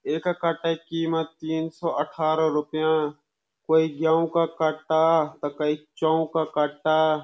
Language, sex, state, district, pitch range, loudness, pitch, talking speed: Garhwali, male, Uttarakhand, Uttarkashi, 155-165 Hz, -24 LUFS, 160 Hz, 130 wpm